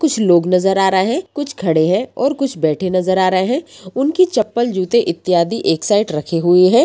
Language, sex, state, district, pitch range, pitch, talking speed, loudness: Hindi, female, Bihar, Samastipur, 180-245 Hz, 190 Hz, 220 wpm, -16 LUFS